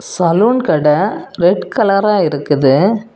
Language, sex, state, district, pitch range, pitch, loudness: Tamil, female, Tamil Nadu, Kanyakumari, 155-215 Hz, 195 Hz, -13 LUFS